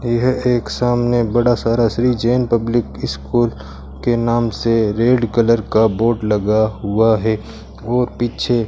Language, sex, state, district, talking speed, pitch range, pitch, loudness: Hindi, male, Rajasthan, Bikaner, 145 wpm, 110-120 Hz, 115 Hz, -17 LUFS